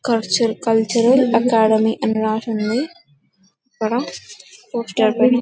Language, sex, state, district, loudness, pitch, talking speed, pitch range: Telugu, female, Telangana, Karimnagar, -18 LUFS, 225 Hz, 65 wpm, 220-245 Hz